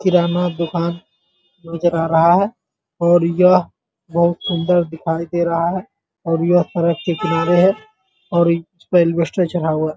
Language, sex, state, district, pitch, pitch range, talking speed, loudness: Maithili, male, Bihar, Muzaffarpur, 170 Hz, 170-180 Hz, 155 wpm, -17 LUFS